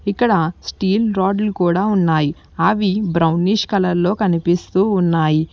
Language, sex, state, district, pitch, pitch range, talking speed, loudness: Telugu, female, Telangana, Hyderabad, 185 Hz, 170-205 Hz, 120 wpm, -17 LUFS